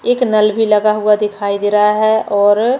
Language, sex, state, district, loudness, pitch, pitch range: Hindi, female, Chhattisgarh, Bastar, -13 LUFS, 210 Hz, 210-220 Hz